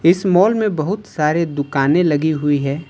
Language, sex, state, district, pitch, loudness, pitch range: Hindi, male, Uttar Pradesh, Lucknow, 160 Hz, -17 LUFS, 145-185 Hz